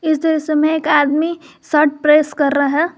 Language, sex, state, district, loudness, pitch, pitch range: Hindi, female, Jharkhand, Garhwa, -15 LUFS, 310 Hz, 300-315 Hz